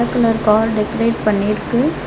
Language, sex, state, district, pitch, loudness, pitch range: Tamil, female, Tamil Nadu, Nilgiris, 225 Hz, -16 LUFS, 215-230 Hz